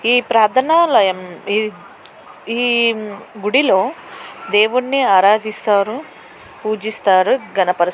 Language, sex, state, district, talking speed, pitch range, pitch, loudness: Telugu, female, Andhra Pradesh, Krishna, 60 wpm, 200-240 Hz, 215 Hz, -16 LUFS